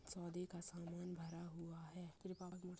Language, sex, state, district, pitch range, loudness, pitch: Hindi, female, Chhattisgarh, Kabirdham, 170-180 Hz, -52 LUFS, 175 Hz